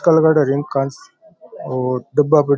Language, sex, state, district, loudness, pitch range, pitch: Rajasthani, male, Rajasthan, Churu, -17 LUFS, 135-160 Hz, 150 Hz